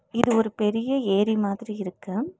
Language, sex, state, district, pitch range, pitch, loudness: Tamil, female, Tamil Nadu, Nilgiris, 200-235 Hz, 215 Hz, -24 LUFS